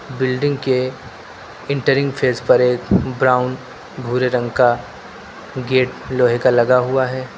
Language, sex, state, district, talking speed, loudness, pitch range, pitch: Hindi, male, Uttar Pradesh, Lucknow, 130 wpm, -17 LUFS, 125-130 Hz, 130 Hz